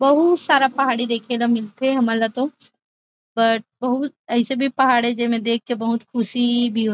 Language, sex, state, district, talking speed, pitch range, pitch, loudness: Chhattisgarhi, female, Chhattisgarh, Rajnandgaon, 205 wpm, 230-265 Hz, 240 Hz, -20 LUFS